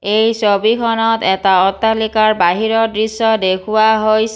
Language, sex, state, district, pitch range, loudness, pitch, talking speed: Assamese, female, Assam, Kamrup Metropolitan, 205-225 Hz, -14 LUFS, 220 Hz, 125 wpm